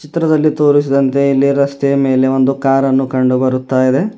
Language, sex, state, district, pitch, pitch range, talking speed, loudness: Kannada, male, Karnataka, Bidar, 135 Hz, 130-145 Hz, 145 wpm, -13 LUFS